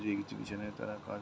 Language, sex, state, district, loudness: Bengali, male, West Bengal, Dakshin Dinajpur, -40 LUFS